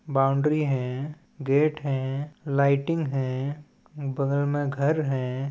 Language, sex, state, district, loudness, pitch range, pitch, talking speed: Chhattisgarhi, male, Chhattisgarh, Balrampur, -26 LUFS, 135-150 Hz, 140 Hz, 110 wpm